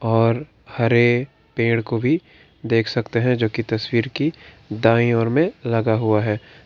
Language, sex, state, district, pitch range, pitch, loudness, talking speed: Hindi, male, Karnataka, Bangalore, 115-125 Hz, 115 Hz, -20 LUFS, 155 wpm